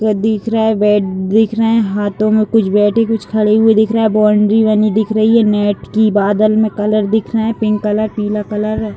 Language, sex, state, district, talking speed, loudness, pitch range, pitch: Hindi, female, Uttar Pradesh, Deoria, 235 wpm, -13 LUFS, 210-220 Hz, 215 Hz